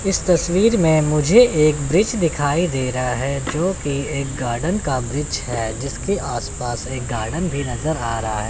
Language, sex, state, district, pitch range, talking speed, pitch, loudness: Hindi, male, Chandigarh, Chandigarh, 125-170 Hz, 185 wpm, 145 Hz, -19 LUFS